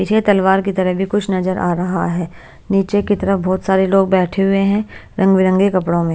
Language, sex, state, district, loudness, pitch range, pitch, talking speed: Hindi, female, Bihar, Patna, -16 LUFS, 185-195 Hz, 190 Hz, 225 wpm